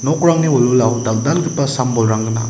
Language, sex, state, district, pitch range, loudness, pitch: Garo, male, Meghalaya, West Garo Hills, 115-155 Hz, -15 LUFS, 125 Hz